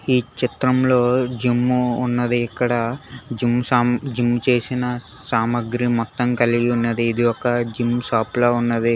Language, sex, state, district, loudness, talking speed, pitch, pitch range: Telugu, male, Telangana, Hyderabad, -20 LUFS, 120 wpm, 120 Hz, 120-125 Hz